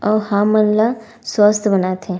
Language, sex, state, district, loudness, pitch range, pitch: Chhattisgarhi, female, Chhattisgarh, Raigarh, -16 LUFS, 200-215 Hz, 210 Hz